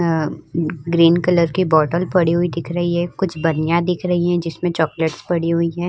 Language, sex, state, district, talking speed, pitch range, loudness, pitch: Hindi, female, Uttar Pradesh, Varanasi, 205 wpm, 165-175 Hz, -18 LUFS, 170 Hz